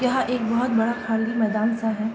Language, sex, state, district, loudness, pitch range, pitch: Hindi, female, Bihar, Gopalganj, -23 LUFS, 220-245 Hz, 225 Hz